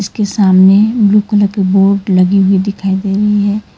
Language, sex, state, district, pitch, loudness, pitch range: Hindi, female, Karnataka, Bangalore, 200 Hz, -11 LUFS, 195-205 Hz